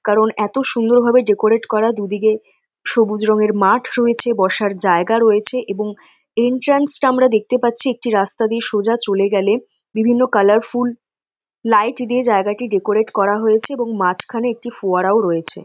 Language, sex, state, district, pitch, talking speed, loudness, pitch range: Bengali, female, West Bengal, North 24 Parganas, 220 Hz, 145 wpm, -16 LUFS, 205-240 Hz